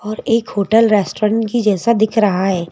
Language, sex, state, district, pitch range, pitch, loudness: Hindi, female, Madhya Pradesh, Bhopal, 200-225 Hz, 215 Hz, -15 LUFS